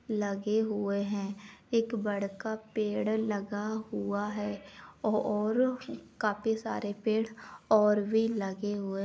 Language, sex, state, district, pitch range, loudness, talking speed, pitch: Hindi, female, Uttar Pradesh, Jyotiba Phule Nagar, 205-220 Hz, -31 LUFS, 125 wpm, 210 Hz